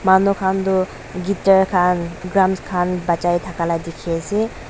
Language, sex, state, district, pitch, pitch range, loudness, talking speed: Nagamese, female, Nagaland, Dimapur, 180 Hz, 170-190 Hz, -19 LUFS, 155 wpm